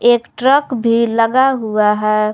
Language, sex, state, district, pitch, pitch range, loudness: Hindi, female, Jharkhand, Garhwa, 230 Hz, 215-255 Hz, -14 LUFS